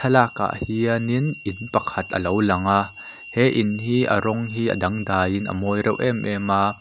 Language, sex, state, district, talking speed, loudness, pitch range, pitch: Mizo, male, Mizoram, Aizawl, 195 wpm, -22 LUFS, 100-115 Hz, 110 Hz